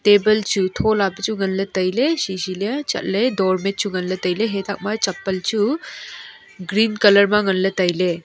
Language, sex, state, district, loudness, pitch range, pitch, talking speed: Wancho, female, Arunachal Pradesh, Longding, -19 LUFS, 190-215 Hz, 200 Hz, 160 wpm